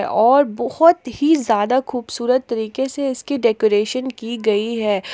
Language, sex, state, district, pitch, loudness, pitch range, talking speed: Hindi, female, Jharkhand, Palamu, 245 Hz, -18 LUFS, 220-265 Hz, 150 wpm